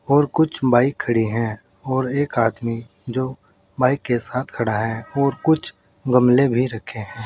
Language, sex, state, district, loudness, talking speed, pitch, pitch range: Hindi, male, Uttar Pradesh, Saharanpur, -20 LUFS, 165 wpm, 120 Hz, 115-135 Hz